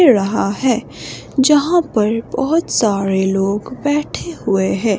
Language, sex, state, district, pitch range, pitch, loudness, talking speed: Hindi, female, Himachal Pradesh, Shimla, 200-290 Hz, 225 Hz, -16 LUFS, 120 wpm